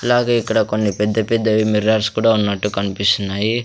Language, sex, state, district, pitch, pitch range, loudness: Telugu, male, Andhra Pradesh, Sri Satya Sai, 110 Hz, 105-115 Hz, -17 LUFS